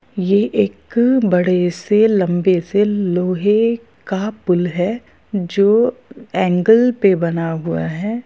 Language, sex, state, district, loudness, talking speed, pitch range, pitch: Hindi, female, Bihar, Gopalganj, -16 LUFS, 115 wpm, 180-225 Hz, 200 Hz